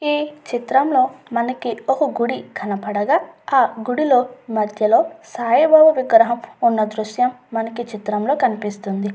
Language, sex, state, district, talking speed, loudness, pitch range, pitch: Telugu, female, Andhra Pradesh, Guntur, 120 wpm, -18 LUFS, 215-270 Hz, 240 Hz